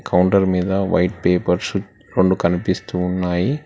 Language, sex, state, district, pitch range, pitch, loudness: Telugu, male, Telangana, Hyderabad, 90-95 Hz, 90 Hz, -19 LUFS